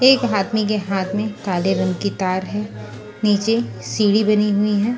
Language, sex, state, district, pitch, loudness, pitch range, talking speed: Hindi, female, Punjab, Pathankot, 205 Hz, -19 LUFS, 185-210 Hz, 180 wpm